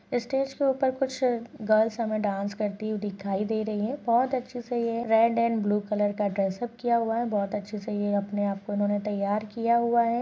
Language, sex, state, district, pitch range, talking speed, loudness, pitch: Hindi, female, Uttarakhand, Tehri Garhwal, 205-235 Hz, 225 wpm, -27 LUFS, 220 Hz